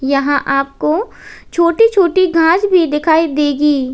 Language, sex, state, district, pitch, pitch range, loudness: Hindi, female, Uttar Pradesh, Lalitpur, 315 Hz, 285-350 Hz, -13 LUFS